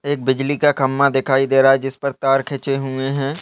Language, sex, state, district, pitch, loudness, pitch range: Hindi, male, Uttarakhand, Uttarkashi, 135 Hz, -17 LUFS, 135-140 Hz